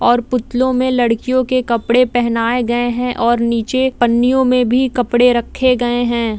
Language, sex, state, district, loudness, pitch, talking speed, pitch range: Hindi, female, Bihar, Gaya, -15 LUFS, 245 Hz, 170 wpm, 235-255 Hz